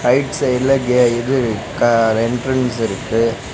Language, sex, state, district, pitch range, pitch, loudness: Tamil, male, Tamil Nadu, Nilgiris, 115-130 Hz, 120 Hz, -16 LUFS